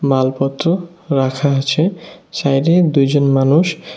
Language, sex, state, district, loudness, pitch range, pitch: Bengali, male, Tripura, West Tripura, -15 LUFS, 135-170 Hz, 145 Hz